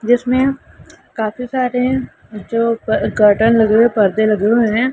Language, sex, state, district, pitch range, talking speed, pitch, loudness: Hindi, female, Punjab, Pathankot, 220-250 Hz, 160 wpm, 230 Hz, -15 LUFS